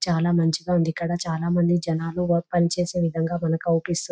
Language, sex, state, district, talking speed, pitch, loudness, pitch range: Telugu, female, Telangana, Nalgonda, 160 wpm, 170 Hz, -23 LUFS, 165-175 Hz